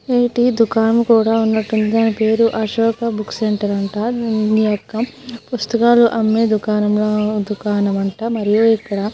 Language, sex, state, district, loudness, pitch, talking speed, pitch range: Telugu, female, Andhra Pradesh, Krishna, -16 LUFS, 220 Hz, 120 wpm, 210-230 Hz